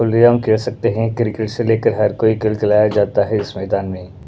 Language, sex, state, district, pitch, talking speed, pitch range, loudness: Hindi, male, Punjab, Pathankot, 110 Hz, 240 wpm, 105-115 Hz, -16 LUFS